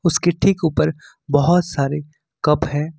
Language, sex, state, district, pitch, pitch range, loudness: Hindi, male, Jharkhand, Ranchi, 150 Hz, 145-170 Hz, -19 LUFS